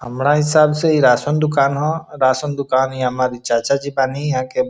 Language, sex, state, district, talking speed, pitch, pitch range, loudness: Bhojpuri, male, Bihar, Saran, 215 wpm, 140 Hz, 130-150 Hz, -17 LUFS